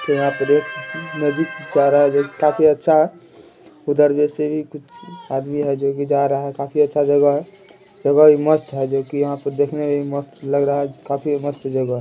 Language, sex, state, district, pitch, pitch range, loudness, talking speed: Hindi, male, Bihar, Jamui, 145 Hz, 140-155 Hz, -18 LUFS, 145 wpm